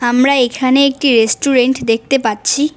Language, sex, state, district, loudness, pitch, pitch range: Bengali, female, West Bengal, Cooch Behar, -13 LUFS, 260 Hz, 240-275 Hz